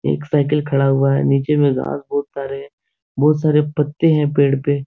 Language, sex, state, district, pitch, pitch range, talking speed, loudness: Hindi, male, Bihar, Supaul, 145 Hz, 135-150 Hz, 210 wpm, -17 LUFS